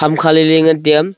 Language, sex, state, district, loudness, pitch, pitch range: Wancho, male, Arunachal Pradesh, Longding, -10 LUFS, 160 Hz, 155-160 Hz